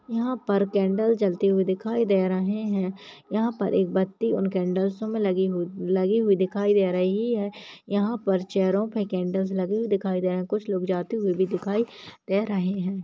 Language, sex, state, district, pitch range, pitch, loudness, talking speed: Hindi, female, Uttarakhand, Tehri Garhwal, 190-210 Hz, 195 Hz, -25 LUFS, 200 wpm